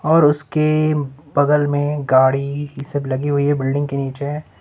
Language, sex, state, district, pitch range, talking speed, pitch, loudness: Hindi, male, Jharkhand, Ranchi, 140-150 Hz, 155 wpm, 145 Hz, -18 LUFS